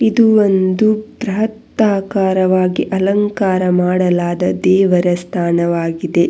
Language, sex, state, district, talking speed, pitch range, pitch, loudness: Kannada, female, Karnataka, Bangalore, 65 wpm, 180-205 Hz, 185 Hz, -15 LUFS